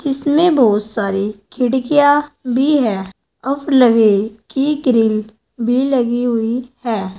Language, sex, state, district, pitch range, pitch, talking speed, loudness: Hindi, female, Uttar Pradesh, Saharanpur, 220-275 Hz, 245 Hz, 115 wpm, -16 LUFS